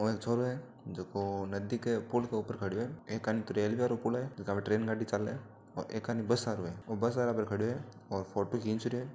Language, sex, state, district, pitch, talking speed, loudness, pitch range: Marwari, male, Rajasthan, Churu, 110 Hz, 255 wpm, -35 LUFS, 100-120 Hz